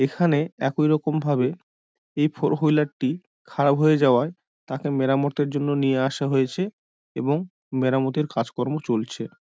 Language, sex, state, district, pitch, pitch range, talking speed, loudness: Bengali, male, West Bengal, Dakshin Dinajpur, 145 Hz, 135-155 Hz, 125 wpm, -23 LUFS